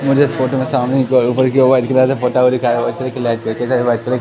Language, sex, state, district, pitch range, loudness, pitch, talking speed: Hindi, male, Madhya Pradesh, Katni, 125-130 Hz, -15 LUFS, 130 Hz, 325 wpm